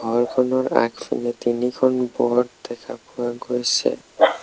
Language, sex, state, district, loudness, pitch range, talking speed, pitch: Assamese, male, Assam, Sonitpur, -21 LUFS, 120-125 Hz, 95 wpm, 125 Hz